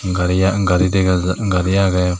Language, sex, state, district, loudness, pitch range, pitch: Chakma, male, Tripura, Dhalai, -16 LUFS, 90-95 Hz, 95 Hz